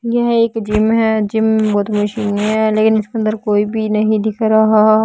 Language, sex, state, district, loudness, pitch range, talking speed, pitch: Hindi, female, Haryana, Jhajjar, -15 LUFS, 215-220 Hz, 200 wpm, 220 Hz